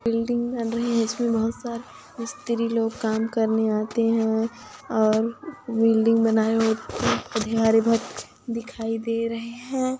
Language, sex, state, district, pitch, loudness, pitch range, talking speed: Hindi, female, Chhattisgarh, Kabirdham, 230 Hz, -24 LUFS, 225-235 Hz, 120 wpm